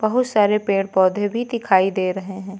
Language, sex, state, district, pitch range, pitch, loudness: Hindi, female, Uttar Pradesh, Lucknow, 190-215 Hz, 200 Hz, -19 LUFS